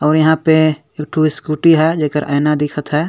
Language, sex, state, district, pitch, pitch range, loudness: Sadri, male, Chhattisgarh, Jashpur, 155 Hz, 150-160 Hz, -14 LUFS